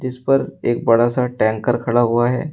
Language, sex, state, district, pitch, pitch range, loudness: Hindi, male, Uttar Pradesh, Shamli, 120 Hz, 120-125 Hz, -18 LUFS